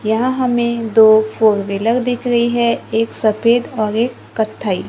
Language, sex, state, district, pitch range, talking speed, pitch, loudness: Hindi, female, Maharashtra, Gondia, 220-240 Hz, 160 wpm, 225 Hz, -15 LUFS